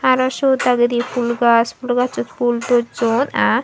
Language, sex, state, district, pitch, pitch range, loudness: Chakma, female, Tripura, Dhalai, 245 Hz, 240-255 Hz, -17 LUFS